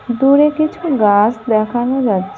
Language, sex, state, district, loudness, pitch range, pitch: Bengali, male, West Bengal, Cooch Behar, -14 LUFS, 215-280 Hz, 240 Hz